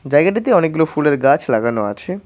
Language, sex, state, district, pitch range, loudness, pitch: Bengali, male, West Bengal, Cooch Behar, 135-165 Hz, -16 LUFS, 145 Hz